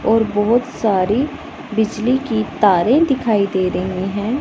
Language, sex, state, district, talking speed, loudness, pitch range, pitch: Hindi, female, Punjab, Pathankot, 135 wpm, -17 LUFS, 200-245 Hz, 220 Hz